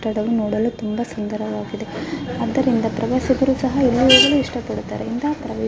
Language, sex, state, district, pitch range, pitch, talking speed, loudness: Kannada, female, Karnataka, Raichur, 215-260 Hz, 240 Hz, 125 wpm, -19 LUFS